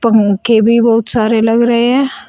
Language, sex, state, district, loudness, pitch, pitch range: Hindi, female, Uttar Pradesh, Shamli, -11 LUFS, 230 Hz, 225-240 Hz